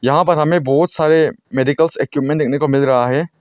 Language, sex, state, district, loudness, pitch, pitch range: Hindi, male, Arunachal Pradesh, Longding, -15 LUFS, 150 Hz, 135-160 Hz